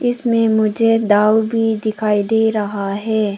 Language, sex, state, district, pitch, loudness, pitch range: Hindi, female, Arunachal Pradesh, Papum Pare, 220 Hz, -16 LUFS, 210-225 Hz